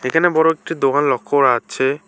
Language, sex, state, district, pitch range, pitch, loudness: Bengali, male, West Bengal, Alipurduar, 135-160 Hz, 145 Hz, -17 LUFS